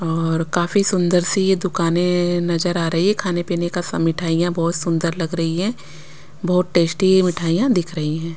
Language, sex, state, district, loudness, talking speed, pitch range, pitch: Hindi, female, Bihar, West Champaran, -19 LUFS, 180 wpm, 165-180 Hz, 175 Hz